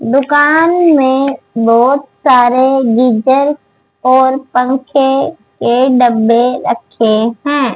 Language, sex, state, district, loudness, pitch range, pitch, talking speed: Hindi, female, Haryana, Charkhi Dadri, -11 LUFS, 245-275 Hz, 260 Hz, 85 wpm